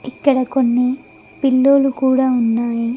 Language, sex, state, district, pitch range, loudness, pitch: Telugu, female, Telangana, Mahabubabad, 240-270 Hz, -16 LUFS, 260 Hz